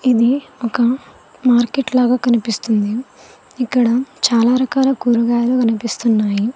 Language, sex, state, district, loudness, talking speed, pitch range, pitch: Telugu, female, Telangana, Mahabubabad, -16 LUFS, 90 wpm, 235-255 Hz, 240 Hz